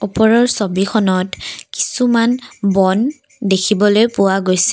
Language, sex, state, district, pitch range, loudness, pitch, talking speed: Assamese, female, Assam, Kamrup Metropolitan, 195-230 Hz, -15 LUFS, 210 Hz, 90 wpm